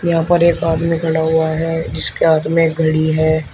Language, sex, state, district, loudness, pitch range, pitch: Hindi, male, Uttar Pradesh, Shamli, -15 LUFS, 160-165 Hz, 160 Hz